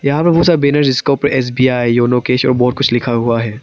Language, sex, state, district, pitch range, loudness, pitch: Hindi, male, Arunachal Pradesh, Papum Pare, 120-140 Hz, -13 LUFS, 125 Hz